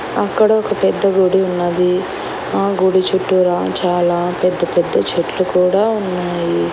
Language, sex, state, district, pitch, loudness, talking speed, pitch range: Telugu, female, Andhra Pradesh, Annamaya, 180 Hz, -16 LUFS, 125 wpm, 175-190 Hz